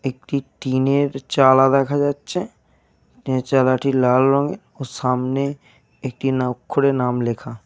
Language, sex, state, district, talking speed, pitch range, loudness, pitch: Bengali, male, Jharkhand, Jamtara, 125 wpm, 125-140 Hz, -19 LUFS, 135 Hz